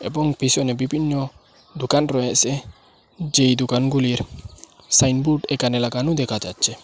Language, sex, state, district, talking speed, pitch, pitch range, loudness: Bengali, male, Assam, Hailakandi, 105 wpm, 130 Hz, 125-145 Hz, -20 LUFS